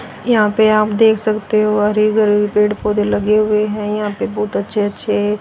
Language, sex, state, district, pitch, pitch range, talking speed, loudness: Hindi, female, Haryana, Rohtak, 210 Hz, 210-215 Hz, 200 wpm, -15 LUFS